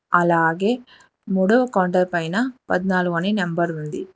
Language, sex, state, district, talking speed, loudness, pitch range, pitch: Telugu, female, Telangana, Hyderabad, 115 wpm, -21 LUFS, 175-230 Hz, 185 Hz